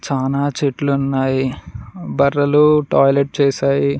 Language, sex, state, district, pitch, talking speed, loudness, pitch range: Telugu, male, Telangana, Mahabubabad, 140 Hz, 75 wpm, -16 LUFS, 135-145 Hz